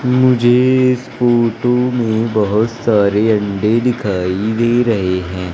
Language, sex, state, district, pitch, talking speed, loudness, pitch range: Hindi, male, Madhya Pradesh, Umaria, 115 Hz, 120 wpm, -14 LUFS, 105-125 Hz